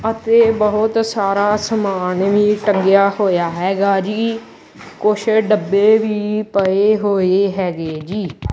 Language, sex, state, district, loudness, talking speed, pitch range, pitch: Punjabi, male, Punjab, Kapurthala, -16 LUFS, 110 wpm, 190-215 Hz, 205 Hz